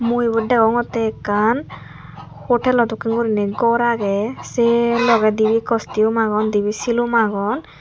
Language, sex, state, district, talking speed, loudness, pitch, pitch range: Chakma, female, Tripura, Unakoti, 140 wpm, -18 LUFS, 225 Hz, 210-235 Hz